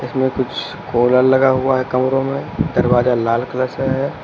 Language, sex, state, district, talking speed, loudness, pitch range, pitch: Hindi, male, Uttar Pradesh, Lucknow, 170 wpm, -17 LUFS, 125-135 Hz, 130 Hz